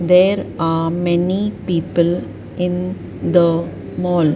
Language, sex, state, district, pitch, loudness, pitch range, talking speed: English, female, Maharashtra, Mumbai Suburban, 175 Hz, -18 LUFS, 170-180 Hz, 95 wpm